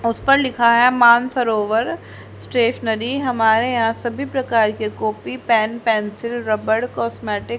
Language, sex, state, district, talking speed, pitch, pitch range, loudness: Hindi, female, Haryana, Charkhi Dadri, 135 wpm, 235 Hz, 220-245 Hz, -18 LUFS